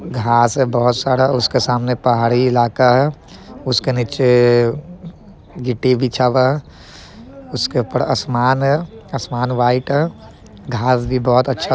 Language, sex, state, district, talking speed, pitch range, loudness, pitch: Hindi, male, Bihar, Muzaffarpur, 140 wpm, 120-130 Hz, -16 LUFS, 125 Hz